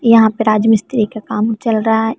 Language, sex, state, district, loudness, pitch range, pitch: Hindi, female, Bihar, West Champaran, -14 LUFS, 220-225 Hz, 220 Hz